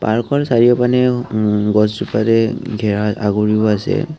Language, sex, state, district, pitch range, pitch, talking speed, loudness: Assamese, male, Assam, Kamrup Metropolitan, 105-120 Hz, 110 Hz, 130 wpm, -16 LUFS